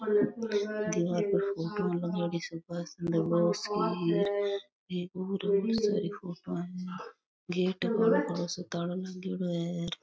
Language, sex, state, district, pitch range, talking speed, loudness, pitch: Rajasthani, female, Rajasthan, Nagaur, 175-200 Hz, 50 wpm, -32 LUFS, 185 Hz